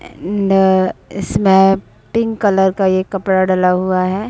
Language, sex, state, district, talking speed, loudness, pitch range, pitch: Hindi, female, Bihar, Saran, 110 wpm, -15 LUFS, 185-195 Hz, 190 Hz